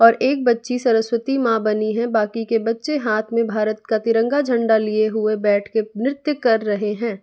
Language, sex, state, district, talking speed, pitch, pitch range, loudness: Hindi, female, Bihar, West Champaran, 200 wpm, 225 Hz, 215-235 Hz, -19 LUFS